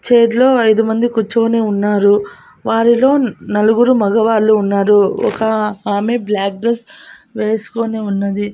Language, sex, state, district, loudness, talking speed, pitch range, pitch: Telugu, female, Andhra Pradesh, Annamaya, -14 LUFS, 110 wpm, 205-235 Hz, 220 Hz